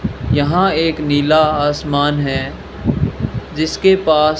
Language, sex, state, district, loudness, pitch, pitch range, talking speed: Hindi, male, Rajasthan, Bikaner, -16 LUFS, 150 Hz, 145-155 Hz, 95 wpm